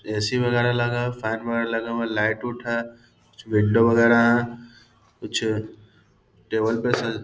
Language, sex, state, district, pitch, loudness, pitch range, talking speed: Hindi, male, Bihar, Gaya, 115 Hz, -22 LUFS, 110-120 Hz, 180 wpm